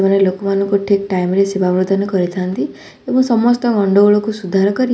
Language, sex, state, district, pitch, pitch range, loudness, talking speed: Odia, female, Odisha, Khordha, 195 Hz, 190-205 Hz, -15 LUFS, 160 wpm